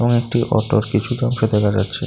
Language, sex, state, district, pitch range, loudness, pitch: Bengali, male, Tripura, South Tripura, 105-120 Hz, -18 LUFS, 115 Hz